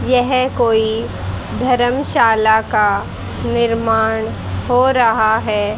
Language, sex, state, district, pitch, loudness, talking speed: Hindi, female, Haryana, Charkhi Dadri, 220 Hz, -15 LUFS, 85 wpm